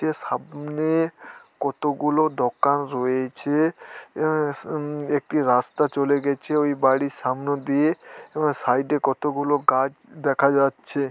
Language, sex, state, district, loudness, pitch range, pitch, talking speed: Bengali, male, West Bengal, Dakshin Dinajpur, -23 LUFS, 140-150 Hz, 145 Hz, 125 wpm